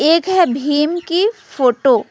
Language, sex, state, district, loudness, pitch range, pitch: Hindi, female, West Bengal, Alipurduar, -15 LUFS, 275-355 Hz, 320 Hz